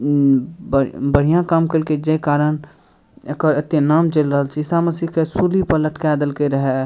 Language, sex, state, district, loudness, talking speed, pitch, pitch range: Maithili, male, Bihar, Madhepura, -18 LUFS, 185 wpm, 150 Hz, 145-165 Hz